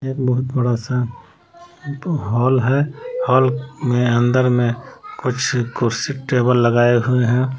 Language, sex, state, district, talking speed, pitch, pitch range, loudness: Hindi, male, Jharkhand, Palamu, 125 wpm, 125 Hz, 120-135 Hz, -18 LUFS